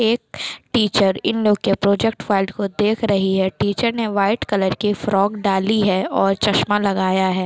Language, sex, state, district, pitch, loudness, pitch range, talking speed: Hindi, female, Chhattisgarh, Sukma, 200 Hz, -19 LUFS, 195-215 Hz, 185 wpm